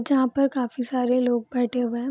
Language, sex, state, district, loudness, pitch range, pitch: Hindi, female, Bihar, Saharsa, -24 LUFS, 245-260 Hz, 250 Hz